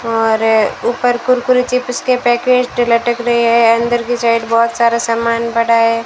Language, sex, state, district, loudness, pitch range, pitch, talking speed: Hindi, female, Rajasthan, Bikaner, -13 LUFS, 230-245 Hz, 235 Hz, 170 wpm